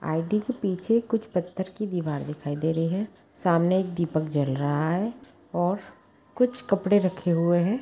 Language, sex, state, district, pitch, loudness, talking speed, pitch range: Magahi, female, Bihar, Gaya, 180 Hz, -26 LUFS, 190 wpm, 165-210 Hz